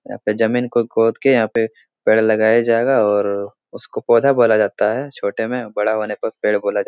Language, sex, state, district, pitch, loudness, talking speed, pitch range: Hindi, male, Bihar, Jahanabad, 115 Hz, -17 LUFS, 220 wpm, 110-125 Hz